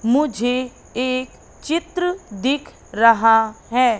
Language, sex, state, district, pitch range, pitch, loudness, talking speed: Hindi, female, Madhya Pradesh, Katni, 225-285 Hz, 250 Hz, -19 LUFS, 90 wpm